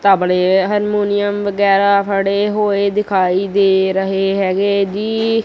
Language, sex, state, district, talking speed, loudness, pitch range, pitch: Punjabi, female, Punjab, Kapurthala, 110 wpm, -15 LUFS, 195-205 Hz, 200 Hz